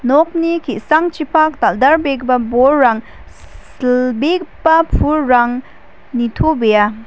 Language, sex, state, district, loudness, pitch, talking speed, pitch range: Garo, female, Meghalaya, West Garo Hills, -14 LUFS, 275 Hz, 60 wpm, 245-315 Hz